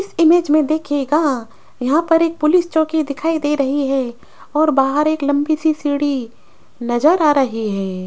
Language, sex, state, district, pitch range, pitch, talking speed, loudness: Hindi, female, Rajasthan, Jaipur, 270-315 Hz, 295 Hz, 170 wpm, -17 LUFS